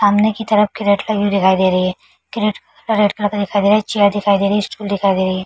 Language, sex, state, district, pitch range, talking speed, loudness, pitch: Hindi, female, Chhattisgarh, Bilaspur, 200-210 Hz, 310 wpm, -16 LUFS, 205 Hz